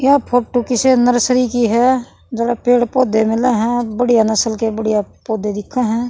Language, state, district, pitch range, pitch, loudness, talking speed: Haryanvi, Haryana, Rohtak, 225-250 Hz, 240 Hz, -15 LUFS, 175 wpm